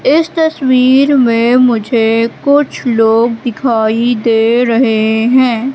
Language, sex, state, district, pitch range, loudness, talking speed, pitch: Hindi, female, Madhya Pradesh, Katni, 230-260 Hz, -11 LUFS, 105 wpm, 240 Hz